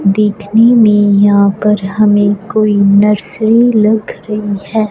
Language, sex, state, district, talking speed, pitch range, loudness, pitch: Hindi, female, Punjab, Fazilka, 120 wpm, 205-215 Hz, -10 LUFS, 210 Hz